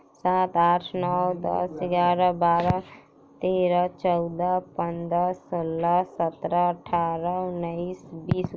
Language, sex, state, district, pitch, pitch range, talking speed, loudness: Bajjika, female, Bihar, Vaishali, 175 Hz, 170-180 Hz, 105 wpm, -25 LUFS